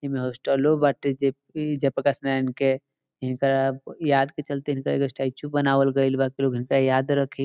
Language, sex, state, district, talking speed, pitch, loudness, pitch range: Bhojpuri, male, Bihar, Saran, 195 wpm, 135 Hz, -24 LUFS, 135-140 Hz